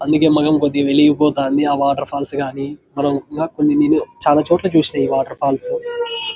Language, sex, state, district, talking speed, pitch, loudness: Telugu, male, Andhra Pradesh, Anantapur, 160 wpm, 150 Hz, -16 LUFS